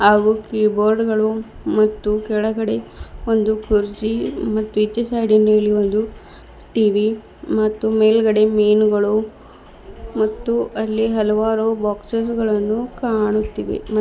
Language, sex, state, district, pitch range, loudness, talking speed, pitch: Kannada, female, Karnataka, Bidar, 210-220 Hz, -18 LUFS, 100 wpm, 215 Hz